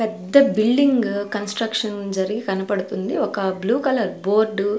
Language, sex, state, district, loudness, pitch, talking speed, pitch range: Telugu, female, Andhra Pradesh, Sri Satya Sai, -20 LUFS, 210 Hz, 125 wpm, 200-225 Hz